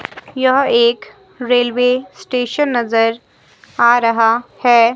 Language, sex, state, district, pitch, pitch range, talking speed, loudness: Hindi, female, Himachal Pradesh, Shimla, 245 Hz, 235-260 Hz, 95 wpm, -15 LUFS